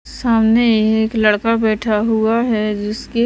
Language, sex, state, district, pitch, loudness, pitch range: Hindi, female, Maharashtra, Washim, 220 Hz, -16 LUFS, 215-230 Hz